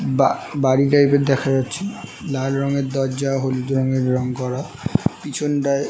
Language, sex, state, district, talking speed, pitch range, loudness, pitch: Bengali, male, West Bengal, North 24 Parganas, 140 wpm, 130-145 Hz, -20 LUFS, 135 Hz